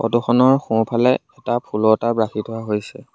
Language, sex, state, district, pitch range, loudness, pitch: Assamese, male, Assam, Sonitpur, 110-125 Hz, -19 LUFS, 115 Hz